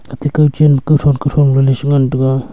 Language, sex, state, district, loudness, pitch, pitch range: Wancho, male, Arunachal Pradesh, Longding, -12 LUFS, 140 Hz, 135-145 Hz